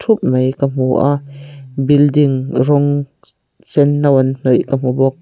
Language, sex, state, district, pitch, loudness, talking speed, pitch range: Mizo, female, Mizoram, Aizawl, 140 Hz, -14 LUFS, 125 wpm, 135-145 Hz